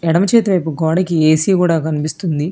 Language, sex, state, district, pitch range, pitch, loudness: Telugu, female, Telangana, Hyderabad, 155-185 Hz, 165 Hz, -15 LUFS